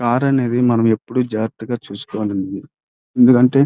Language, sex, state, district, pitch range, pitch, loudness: Telugu, male, Andhra Pradesh, Krishna, 110-125 Hz, 120 Hz, -17 LUFS